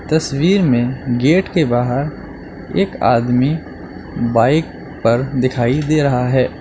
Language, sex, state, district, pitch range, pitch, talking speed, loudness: Hindi, male, Uttar Pradesh, Lalitpur, 120-155 Hz, 130 Hz, 120 wpm, -16 LUFS